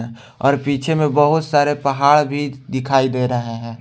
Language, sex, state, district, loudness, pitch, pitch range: Hindi, male, Jharkhand, Ranchi, -17 LUFS, 140 Hz, 125-145 Hz